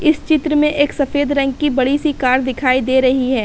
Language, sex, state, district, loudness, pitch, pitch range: Hindi, female, Uttar Pradesh, Hamirpur, -16 LUFS, 280 Hz, 260-295 Hz